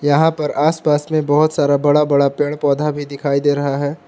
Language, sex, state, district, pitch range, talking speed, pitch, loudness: Hindi, male, Jharkhand, Palamu, 145-150 Hz, 235 wpm, 145 Hz, -16 LUFS